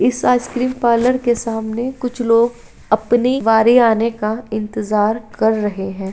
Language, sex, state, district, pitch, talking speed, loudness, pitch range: Hindi, male, Bihar, Saharsa, 225 Hz, 145 wpm, -17 LUFS, 215-245 Hz